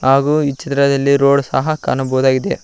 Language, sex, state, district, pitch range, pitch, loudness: Kannada, male, Karnataka, Koppal, 130-140 Hz, 140 Hz, -15 LUFS